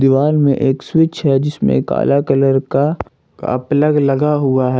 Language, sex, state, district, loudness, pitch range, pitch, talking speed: Hindi, male, Jharkhand, Ranchi, -15 LUFS, 135-150 Hz, 140 Hz, 175 wpm